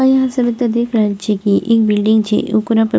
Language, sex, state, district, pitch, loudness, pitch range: Maithili, female, Bihar, Purnia, 225 Hz, -15 LUFS, 210-240 Hz